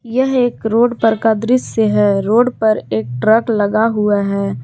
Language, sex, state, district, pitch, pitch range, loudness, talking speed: Hindi, female, Jharkhand, Garhwa, 220 Hz, 205-235 Hz, -15 LUFS, 180 wpm